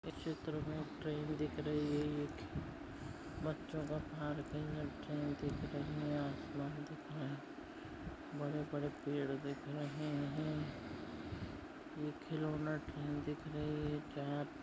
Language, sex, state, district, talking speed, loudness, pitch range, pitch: Hindi, female, Maharashtra, Aurangabad, 130 wpm, -43 LUFS, 145-150 Hz, 150 Hz